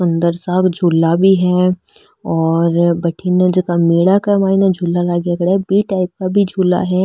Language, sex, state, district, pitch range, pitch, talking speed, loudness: Marwari, female, Rajasthan, Nagaur, 170-190 Hz, 180 Hz, 100 wpm, -14 LUFS